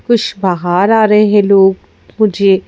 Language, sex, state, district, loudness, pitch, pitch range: Hindi, female, Madhya Pradesh, Bhopal, -11 LUFS, 200 Hz, 190-215 Hz